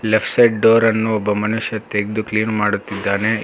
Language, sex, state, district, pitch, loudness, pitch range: Kannada, male, Karnataka, Bangalore, 110 Hz, -17 LUFS, 105-110 Hz